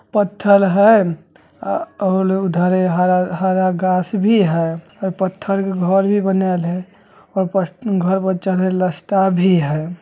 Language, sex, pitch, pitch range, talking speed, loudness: Bajjika, male, 190 Hz, 180-195 Hz, 125 wpm, -17 LUFS